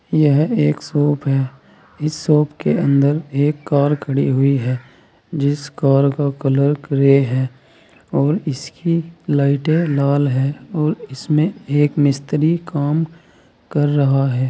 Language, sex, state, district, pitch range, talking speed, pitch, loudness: Hindi, male, Uttar Pradesh, Saharanpur, 135-150 Hz, 130 wpm, 145 Hz, -18 LUFS